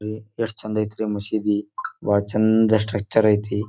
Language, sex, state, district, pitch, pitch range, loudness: Kannada, male, Karnataka, Dharwad, 105 Hz, 105-110 Hz, -22 LUFS